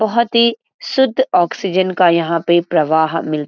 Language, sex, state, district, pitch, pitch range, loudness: Hindi, female, Uttarakhand, Uttarkashi, 180 Hz, 165-235 Hz, -15 LUFS